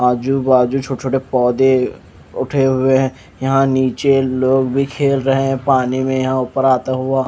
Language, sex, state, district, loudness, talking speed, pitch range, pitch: Hindi, male, Maharashtra, Mumbai Suburban, -16 LUFS, 175 wpm, 130-135 Hz, 130 Hz